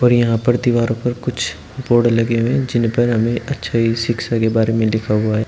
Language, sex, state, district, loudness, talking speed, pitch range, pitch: Hindi, male, Uttar Pradesh, Shamli, -17 LUFS, 220 wpm, 115-120 Hz, 115 Hz